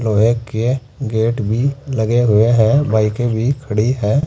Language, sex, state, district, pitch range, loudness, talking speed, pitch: Hindi, male, Uttar Pradesh, Saharanpur, 110-130 Hz, -16 LUFS, 155 wpm, 115 Hz